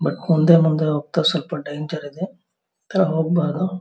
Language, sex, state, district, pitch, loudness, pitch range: Kannada, male, Karnataka, Mysore, 165 Hz, -20 LUFS, 155-175 Hz